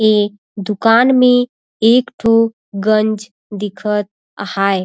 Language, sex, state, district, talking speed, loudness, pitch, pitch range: Surgujia, female, Chhattisgarh, Sarguja, 110 wpm, -15 LUFS, 215 Hz, 205-230 Hz